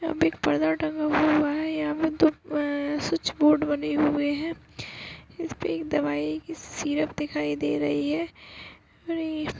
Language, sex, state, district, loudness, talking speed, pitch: Hindi, female, Uttarakhand, Uttarkashi, -26 LUFS, 170 wpm, 295 Hz